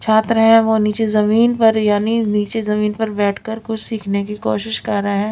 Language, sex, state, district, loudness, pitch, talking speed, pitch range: Hindi, female, Bihar, Patna, -16 LUFS, 215 Hz, 205 wpm, 210-225 Hz